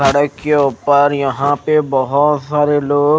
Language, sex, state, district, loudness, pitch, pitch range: Hindi, male, Odisha, Khordha, -14 LUFS, 145 Hz, 140-150 Hz